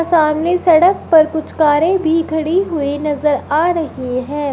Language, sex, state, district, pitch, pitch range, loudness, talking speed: Hindi, female, Uttar Pradesh, Shamli, 315 Hz, 295-335 Hz, -15 LUFS, 160 wpm